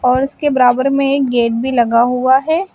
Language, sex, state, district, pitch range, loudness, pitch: Hindi, female, Uttar Pradesh, Shamli, 245-275 Hz, -14 LUFS, 260 Hz